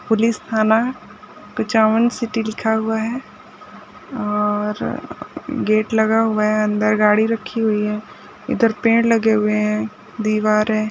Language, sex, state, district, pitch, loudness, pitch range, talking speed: Hindi, female, Rajasthan, Nagaur, 215 Hz, -18 LUFS, 210-225 Hz, 130 wpm